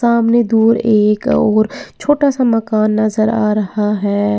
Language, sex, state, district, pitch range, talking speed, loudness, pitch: Hindi, female, Uttar Pradesh, Lalitpur, 210-235 Hz, 150 wpm, -14 LUFS, 215 Hz